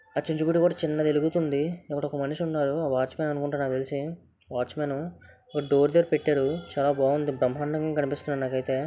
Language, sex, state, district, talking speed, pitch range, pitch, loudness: Telugu, male, Andhra Pradesh, Visakhapatnam, 140 wpm, 140-155 Hz, 145 Hz, -27 LUFS